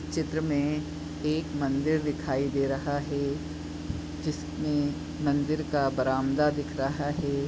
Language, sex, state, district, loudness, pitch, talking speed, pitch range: Hindi, male, Chhattisgarh, Bastar, -29 LUFS, 145 Hz, 120 wpm, 135-150 Hz